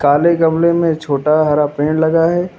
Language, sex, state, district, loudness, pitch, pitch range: Hindi, male, Uttar Pradesh, Lucknow, -14 LUFS, 160 Hz, 150-170 Hz